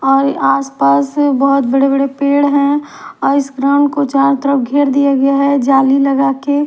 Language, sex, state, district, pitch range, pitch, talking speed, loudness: Hindi, female, Bihar, Patna, 270-280 Hz, 275 Hz, 170 wpm, -13 LUFS